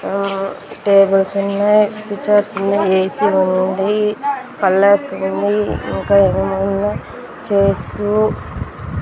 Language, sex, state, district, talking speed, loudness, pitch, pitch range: Telugu, female, Andhra Pradesh, Sri Satya Sai, 95 wpm, -16 LUFS, 200 Hz, 195-210 Hz